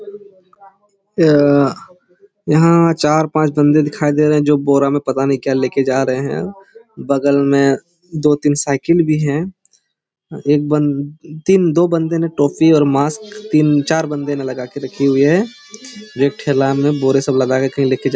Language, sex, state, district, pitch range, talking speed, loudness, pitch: Hindi, male, Jharkhand, Jamtara, 140-175 Hz, 170 wpm, -15 LUFS, 150 Hz